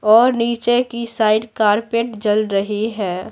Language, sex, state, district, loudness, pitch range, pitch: Hindi, female, Bihar, Patna, -17 LUFS, 210-235 Hz, 220 Hz